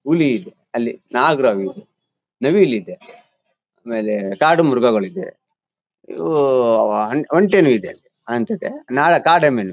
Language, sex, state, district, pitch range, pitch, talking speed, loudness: Kannada, male, Karnataka, Mysore, 105-155 Hz, 120 Hz, 110 wpm, -17 LUFS